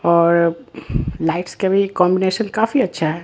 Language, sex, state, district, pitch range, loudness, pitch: Hindi, male, Bihar, Katihar, 165-195 Hz, -18 LUFS, 180 Hz